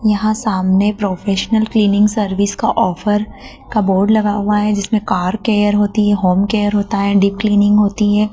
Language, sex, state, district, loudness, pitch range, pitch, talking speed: Hindi, female, Madhya Pradesh, Dhar, -15 LUFS, 200-215 Hz, 205 Hz, 180 wpm